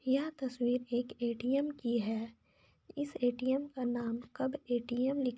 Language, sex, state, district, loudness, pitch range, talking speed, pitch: Hindi, female, Jharkhand, Sahebganj, -35 LUFS, 240-270 Hz, 145 wpm, 250 Hz